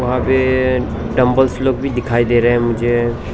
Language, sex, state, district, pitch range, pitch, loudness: Hindi, male, Nagaland, Dimapur, 120-130 Hz, 125 Hz, -15 LUFS